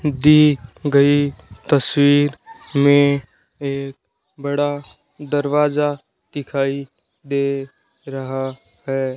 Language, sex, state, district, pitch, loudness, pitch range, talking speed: Hindi, male, Rajasthan, Bikaner, 140 Hz, -18 LUFS, 135-145 Hz, 70 wpm